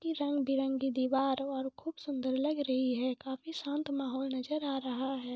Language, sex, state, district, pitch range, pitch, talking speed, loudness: Hindi, female, Jharkhand, Sahebganj, 260-285 Hz, 270 Hz, 190 wpm, -34 LUFS